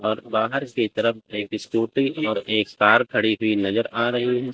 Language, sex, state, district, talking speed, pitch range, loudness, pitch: Hindi, male, Chandigarh, Chandigarh, 200 wpm, 110-120 Hz, -22 LUFS, 110 Hz